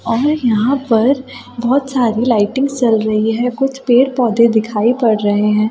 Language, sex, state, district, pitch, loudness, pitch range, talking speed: Hindi, female, Delhi, New Delhi, 240 Hz, -14 LUFS, 220-260 Hz, 155 wpm